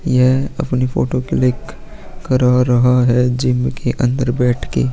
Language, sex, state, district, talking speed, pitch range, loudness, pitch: Hindi, male, Maharashtra, Aurangabad, 145 wpm, 125-130 Hz, -16 LUFS, 125 Hz